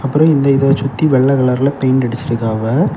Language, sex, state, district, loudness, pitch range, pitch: Tamil, male, Tamil Nadu, Kanyakumari, -14 LUFS, 125-140 Hz, 135 Hz